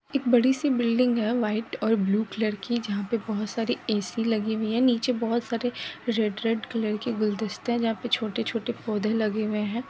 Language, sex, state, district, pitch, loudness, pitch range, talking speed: Kumaoni, female, Uttarakhand, Tehri Garhwal, 225 Hz, -26 LUFS, 215-240 Hz, 200 wpm